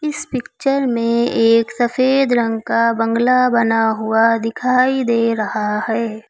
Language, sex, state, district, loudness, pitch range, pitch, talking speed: Hindi, female, Uttar Pradesh, Lucknow, -16 LUFS, 225-255 Hz, 230 Hz, 135 wpm